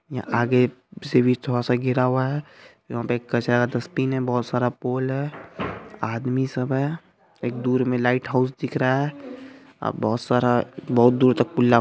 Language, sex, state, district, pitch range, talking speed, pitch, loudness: Hindi, male, Bihar, Araria, 120-135 Hz, 190 wpm, 125 Hz, -23 LUFS